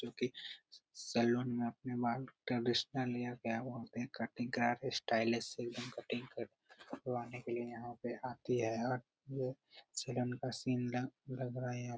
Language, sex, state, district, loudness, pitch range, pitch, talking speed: Hindi, male, Bihar, Araria, -40 LUFS, 120-125 Hz, 120 Hz, 175 wpm